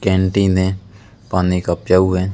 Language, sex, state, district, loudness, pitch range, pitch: Hindi, male, Rajasthan, Bikaner, -17 LUFS, 90-100 Hz, 95 Hz